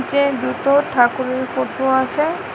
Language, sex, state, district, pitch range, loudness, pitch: Bengali, female, Tripura, West Tripura, 260-280 Hz, -18 LUFS, 265 Hz